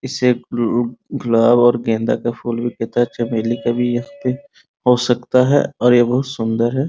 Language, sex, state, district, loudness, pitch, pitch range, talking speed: Hindi, male, Bihar, Muzaffarpur, -17 LUFS, 120 Hz, 120-125 Hz, 200 wpm